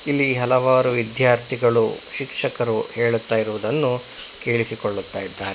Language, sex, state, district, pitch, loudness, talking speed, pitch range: Kannada, male, Karnataka, Bangalore, 120 Hz, -20 LUFS, 85 wpm, 115-130 Hz